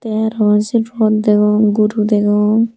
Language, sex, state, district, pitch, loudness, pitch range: Chakma, female, Tripura, Dhalai, 215 Hz, -14 LUFS, 210-220 Hz